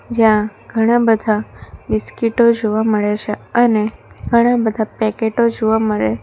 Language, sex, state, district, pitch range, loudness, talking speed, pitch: Gujarati, female, Gujarat, Valsad, 210-230 Hz, -16 LUFS, 125 wpm, 220 Hz